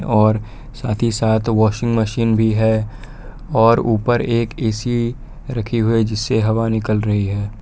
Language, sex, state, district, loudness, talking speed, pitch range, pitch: Hindi, male, Jharkhand, Palamu, -18 LUFS, 160 wpm, 110-120 Hz, 115 Hz